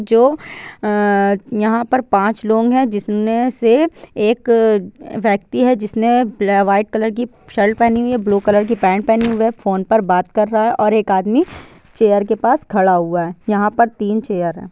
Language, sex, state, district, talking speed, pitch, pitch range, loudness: Hindi, female, Bihar, Sitamarhi, 180 wpm, 220 Hz, 200-235 Hz, -16 LUFS